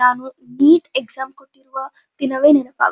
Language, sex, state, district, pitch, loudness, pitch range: Kannada, female, Karnataka, Dharwad, 270 Hz, -16 LUFS, 265-285 Hz